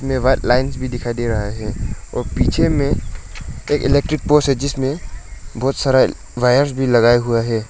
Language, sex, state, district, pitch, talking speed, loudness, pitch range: Hindi, male, Arunachal Pradesh, Lower Dibang Valley, 125 Hz, 180 wpm, -17 LUFS, 115-135 Hz